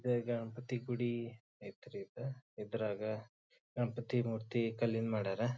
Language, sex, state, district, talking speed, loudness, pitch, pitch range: Kannada, male, Karnataka, Dharwad, 105 wpm, -39 LUFS, 120 Hz, 115-120 Hz